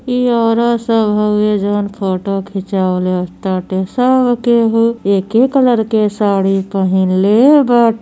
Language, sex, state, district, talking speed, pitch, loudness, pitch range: Bhojpuri, female, Uttar Pradesh, Gorakhpur, 120 wpm, 210 Hz, -13 LUFS, 195-235 Hz